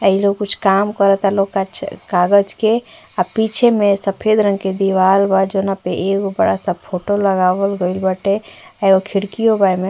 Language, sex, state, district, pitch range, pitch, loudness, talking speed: Bhojpuri, female, Uttar Pradesh, Ghazipur, 190-205 Hz, 195 Hz, -16 LUFS, 175 wpm